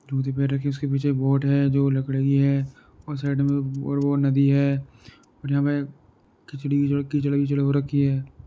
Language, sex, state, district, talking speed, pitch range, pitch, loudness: Hindi, male, Uttar Pradesh, Varanasi, 190 wpm, 135-140 Hz, 140 Hz, -23 LUFS